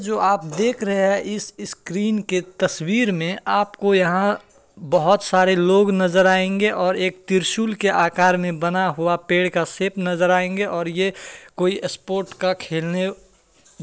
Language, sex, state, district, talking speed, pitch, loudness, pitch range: Hindi, male, Bihar, Madhepura, 165 wpm, 185 Hz, -20 LUFS, 180-200 Hz